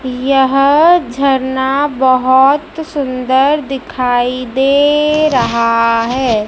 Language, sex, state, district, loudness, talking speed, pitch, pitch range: Hindi, male, Madhya Pradesh, Dhar, -12 LUFS, 75 wpm, 265 Hz, 255-285 Hz